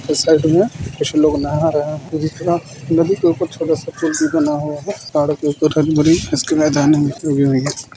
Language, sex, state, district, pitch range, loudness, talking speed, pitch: Hindi, male, West Bengal, Purulia, 145-160 Hz, -16 LUFS, 135 wpm, 155 Hz